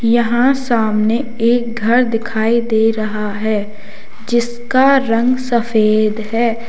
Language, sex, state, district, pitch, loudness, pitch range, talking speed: Hindi, male, Uttar Pradesh, Lalitpur, 230 Hz, -15 LUFS, 220-235 Hz, 105 wpm